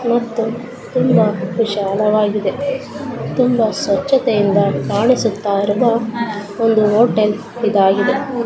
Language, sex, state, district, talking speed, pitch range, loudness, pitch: Kannada, female, Karnataka, Dharwad, 70 wpm, 205-240 Hz, -16 LUFS, 225 Hz